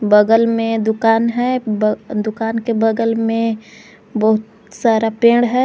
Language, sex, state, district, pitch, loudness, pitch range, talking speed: Hindi, female, Jharkhand, Garhwa, 225 Hz, -16 LUFS, 215-230 Hz, 125 wpm